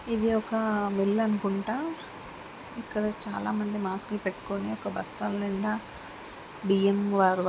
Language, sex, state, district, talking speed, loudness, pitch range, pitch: Telugu, female, Andhra Pradesh, Srikakulam, 120 wpm, -29 LUFS, 195-220 Hz, 210 Hz